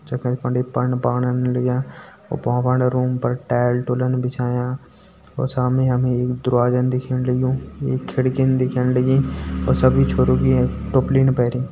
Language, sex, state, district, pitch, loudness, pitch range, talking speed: Hindi, male, Uttarakhand, Tehri Garhwal, 125 Hz, -20 LUFS, 125-130 Hz, 145 wpm